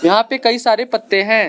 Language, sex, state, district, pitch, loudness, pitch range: Hindi, male, Arunachal Pradesh, Lower Dibang Valley, 225 Hz, -15 LUFS, 215-235 Hz